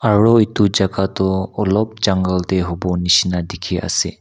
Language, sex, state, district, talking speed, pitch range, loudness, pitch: Nagamese, male, Nagaland, Kohima, 155 wpm, 90-105 Hz, -17 LUFS, 95 Hz